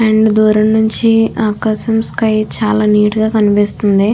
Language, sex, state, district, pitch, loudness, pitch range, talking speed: Telugu, female, Andhra Pradesh, Krishna, 215 Hz, -12 LUFS, 210-220 Hz, 130 wpm